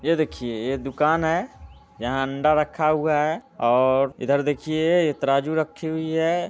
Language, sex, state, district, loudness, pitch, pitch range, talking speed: Hindi, male, Bihar, Muzaffarpur, -23 LUFS, 150 Hz, 135-160 Hz, 165 wpm